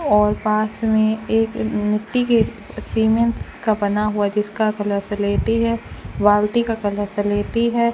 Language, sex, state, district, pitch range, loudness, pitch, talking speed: Hindi, female, Rajasthan, Bikaner, 205-225 Hz, -20 LUFS, 215 Hz, 145 wpm